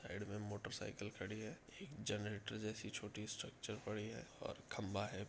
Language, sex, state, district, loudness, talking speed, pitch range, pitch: Hindi, male, Uttar Pradesh, Etah, -48 LUFS, 170 wpm, 105-110 Hz, 105 Hz